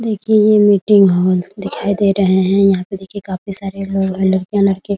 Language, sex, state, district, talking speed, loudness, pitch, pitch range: Hindi, female, Bihar, Muzaffarpur, 240 wpm, -14 LUFS, 195 Hz, 190-205 Hz